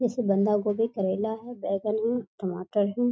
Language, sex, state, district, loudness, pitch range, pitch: Hindi, female, Bihar, East Champaran, -27 LUFS, 195-235 Hz, 210 Hz